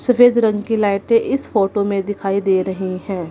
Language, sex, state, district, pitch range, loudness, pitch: Hindi, female, Punjab, Kapurthala, 195-225 Hz, -17 LUFS, 200 Hz